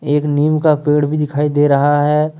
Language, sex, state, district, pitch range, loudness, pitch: Hindi, male, Jharkhand, Deoghar, 145-150 Hz, -14 LUFS, 150 Hz